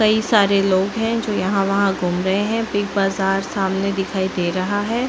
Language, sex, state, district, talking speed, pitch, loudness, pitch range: Hindi, female, Chhattisgarh, Bilaspur, 200 wpm, 195 Hz, -19 LUFS, 190-210 Hz